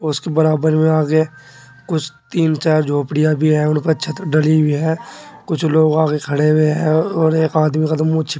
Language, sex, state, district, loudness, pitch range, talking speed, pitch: Hindi, male, Uttar Pradesh, Saharanpur, -16 LUFS, 150-160 Hz, 205 wpm, 155 Hz